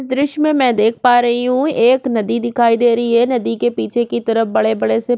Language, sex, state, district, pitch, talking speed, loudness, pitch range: Hindi, female, Chhattisgarh, Korba, 235 Hz, 245 wpm, -15 LUFS, 210-250 Hz